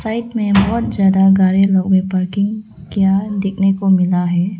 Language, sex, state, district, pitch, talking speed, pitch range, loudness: Hindi, female, Arunachal Pradesh, Lower Dibang Valley, 195 Hz, 170 wpm, 185-200 Hz, -15 LUFS